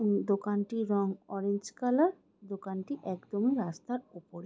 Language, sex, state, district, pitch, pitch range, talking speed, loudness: Bengali, female, West Bengal, Jhargram, 200 Hz, 195-235 Hz, 135 wpm, -33 LUFS